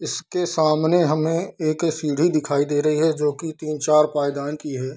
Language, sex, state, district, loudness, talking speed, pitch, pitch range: Hindi, male, Bihar, Darbhanga, -21 LUFS, 195 wpm, 155 Hz, 145-160 Hz